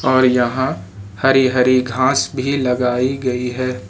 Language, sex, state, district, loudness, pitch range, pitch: Hindi, male, Jharkhand, Ranchi, -17 LUFS, 125-130 Hz, 130 Hz